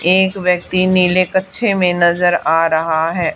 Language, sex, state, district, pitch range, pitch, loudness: Hindi, female, Haryana, Charkhi Dadri, 170-185 Hz, 180 Hz, -14 LUFS